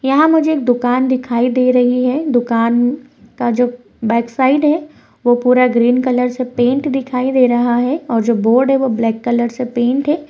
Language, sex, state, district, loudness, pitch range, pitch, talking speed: Hindi, female, Uttar Pradesh, Budaun, -15 LUFS, 240-265 Hz, 250 Hz, 200 wpm